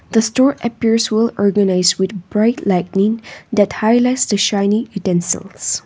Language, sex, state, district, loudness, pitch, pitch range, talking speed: English, female, Nagaland, Kohima, -16 LUFS, 210 Hz, 195-230 Hz, 135 wpm